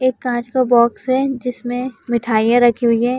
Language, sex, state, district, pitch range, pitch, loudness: Hindi, female, Uttar Pradesh, Jalaun, 235-255 Hz, 245 Hz, -17 LUFS